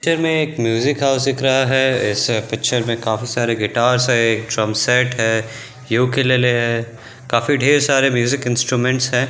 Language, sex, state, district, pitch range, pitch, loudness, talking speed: Hindi, male, Bihar, Kishanganj, 115-130 Hz, 125 Hz, -17 LUFS, 165 wpm